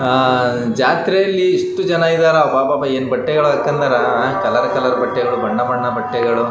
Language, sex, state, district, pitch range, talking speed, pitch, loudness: Kannada, male, Karnataka, Raichur, 125-170 Hz, 140 wpm, 135 Hz, -15 LUFS